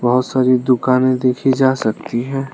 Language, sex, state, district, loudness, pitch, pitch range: Hindi, male, Arunachal Pradesh, Lower Dibang Valley, -16 LUFS, 130 Hz, 125-130 Hz